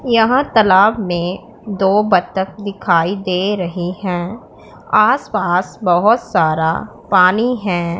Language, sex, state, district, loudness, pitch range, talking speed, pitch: Hindi, female, Punjab, Pathankot, -15 LUFS, 175-215 Hz, 105 wpm, 190 Hz